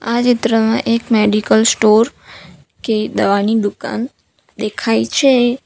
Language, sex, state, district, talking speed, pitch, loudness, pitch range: Gujarati, female, Gujarat, Valsad, 105 wpm, 225 Hz, -15 LUFS, 215-235 Hz